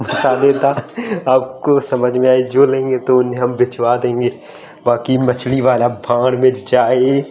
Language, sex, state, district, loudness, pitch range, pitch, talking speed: Hindi, male, Chandigarh, Chandigarh, -15 LUFS, 125-130 Hz, 130 Hz, 140 wpm